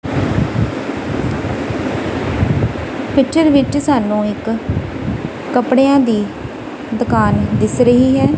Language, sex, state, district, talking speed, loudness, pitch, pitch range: Punjabi, female, Punjab, Kapurthala, 70 wpm, -16 LUFS, 260 Hz, 230-280 Hz